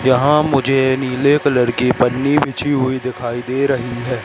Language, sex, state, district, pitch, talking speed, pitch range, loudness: Hindi, male, Madhya Pradesh, Katni, 130 Hz, 170 wpm, 125-140 Hz, -16 LUFS